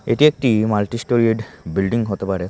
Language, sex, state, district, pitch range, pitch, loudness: Bengali, male, Tripura, Unakoti, 100-115 Hz, 110 Hz, -19 LUFS